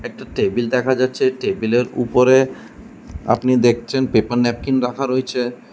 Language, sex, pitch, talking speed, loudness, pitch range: Bengali, male, 125 Hz, 135 wpm, -18 LUFS, 120-130 Hz